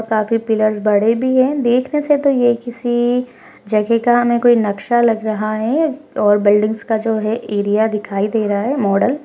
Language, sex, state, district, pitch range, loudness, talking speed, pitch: Hindi, female, Uttarakhand, Tehri Garhwal, 215-245 Hz, -16 LUFS, 195 wpm, 225 Hz